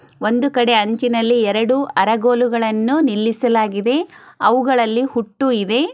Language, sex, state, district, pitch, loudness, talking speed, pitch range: Kannada, female, Karnataka, Chamarajanagar, 240 Hz, -17 LUFS, 90 wpm, 225-255 Hz